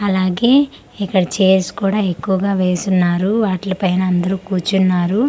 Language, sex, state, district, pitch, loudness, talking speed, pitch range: Telugu, female, Andhra Pradesh, Manyam, 190 Hz, -16 LUFS, 100 wpm, 185-200 Hz